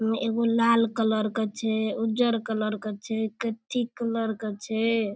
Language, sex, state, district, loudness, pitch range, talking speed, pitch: Maithili, female, Bihar, Darbhanga, -27 LUFS, 220-230 Hz, 160 wpm, 225 Hz